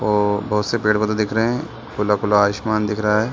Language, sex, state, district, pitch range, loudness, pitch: Hindi, male, Chhattisgarh, Bilaspur, 105-110 Hz, -19 LUFS, 105 Hz